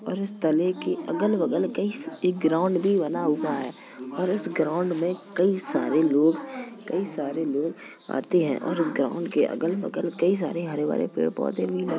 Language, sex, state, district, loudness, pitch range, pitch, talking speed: Hindi, female, Uttar Pradesh, Jalaun, -25 LUFS, 155-190 Hz, 175 Hz, 190 wpm